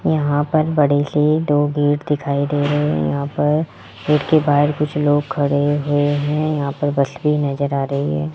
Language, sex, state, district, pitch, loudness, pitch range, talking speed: Hindi, male, Rajasthan, Jaipur, 145 Hz, -18 LUFS, 140-150 Hz, 195 wpm